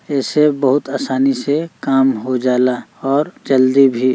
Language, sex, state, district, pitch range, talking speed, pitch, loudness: Bhojpuri, male, Uttar Pradesh, Deoria, 130-140 Hz, 145 wpm, 135 Hz, -16 LUFS